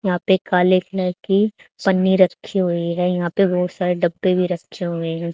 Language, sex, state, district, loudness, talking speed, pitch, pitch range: Hindi, female, Haryana, Charkhi Dadri, -19 LUFS, 200 wpm, 180 Hz, 175-190 Hz